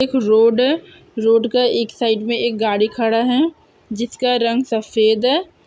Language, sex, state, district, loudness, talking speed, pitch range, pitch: Hindi, female, Andhra Pradesh, Krishna, -17 LUFS, 180 wpm, 225-250 Hz, 235 Hz